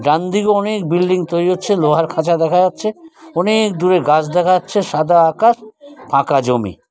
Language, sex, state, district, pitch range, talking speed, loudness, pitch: Bengali, female, West Bengal, Purulia, 160-210 Hz, 155 wpm, -15 LUFS, 180 Hz